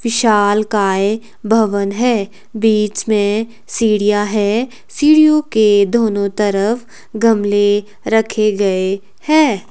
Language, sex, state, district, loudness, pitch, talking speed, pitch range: Hindi, female, Himachal Pradesh, Shimla, -15 LUFS, 215 Hz, 95 wpm, 205-225 Hz